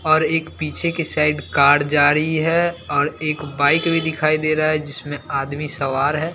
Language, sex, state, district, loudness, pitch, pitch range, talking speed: Hindi, male, Bihar, Katihar, -19 LUFS, 155 Hz, 145-160 Hz, 200 wpm